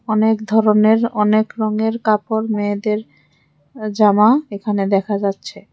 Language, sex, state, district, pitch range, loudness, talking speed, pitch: Bengali, female, Tripura, West Tripura, 205-220 Hz, -17 LUFS, 105 wpm, 215 Hz